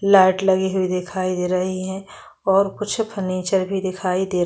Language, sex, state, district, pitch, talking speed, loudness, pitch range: Hindi, female, Chhattisgarh, Korba, 190 Hz, 190 wpm, -21 LUFS, 185-195 Hz